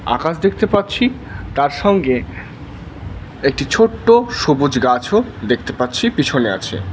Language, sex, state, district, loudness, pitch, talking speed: Bengali, male, West Bengal, Alipurduar, -16 LUFS, 135 Hz, 110 wpm